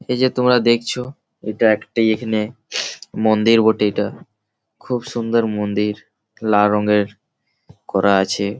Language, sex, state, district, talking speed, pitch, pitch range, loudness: Bengali, male, West Bengal, Malda, 125 wpm, 110 Hz, 105-120 Hz, -18 LUFS